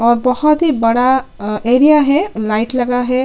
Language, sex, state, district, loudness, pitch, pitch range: Hindi, female, Chhattisgarh, Sukma, -14 LUFS, 250 Hz, 230-285 Hz